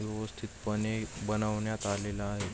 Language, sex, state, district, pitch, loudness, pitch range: Marathi, male, Maharashtra, Aurangabad, 105 Hz, -34 LUFS, 105-110 Hz